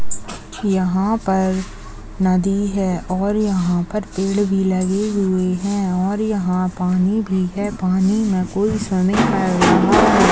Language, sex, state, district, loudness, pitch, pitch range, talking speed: Hindi, female, Chhattisgarh, Jashpur, -18 LUFS, 190 Hz, 185-200 Hz, 130 wpm